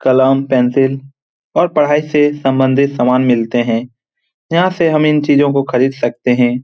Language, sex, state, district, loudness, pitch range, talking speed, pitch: Hindi, male, Bihar, Lakhisarai, -13 LUFS, 125-145 Hz, 170 wpm, 135 Hz